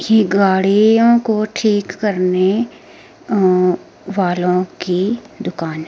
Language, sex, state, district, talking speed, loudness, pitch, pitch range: Hindi, female, Himachal Pradesh, Shimla, 100 wpm, -16 LUFS, 200 Hz, 185-220 Hz